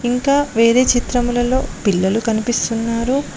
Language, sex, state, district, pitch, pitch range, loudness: Telugu, female, Telangana, Mahabubabad, 240 Hz, 230-255 Hz, -17 LUFS